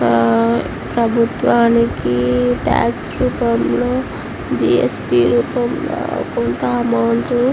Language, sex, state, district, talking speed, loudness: Telugu, female, Andhra Pradesh, Visakhapatnam, 70 wpm, -16 LUFS